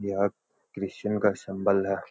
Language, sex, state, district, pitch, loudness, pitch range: Hindi, male, Uttarakhand, Uttarkashi, 100 Hz, -28 LUFS, 95-105 Hz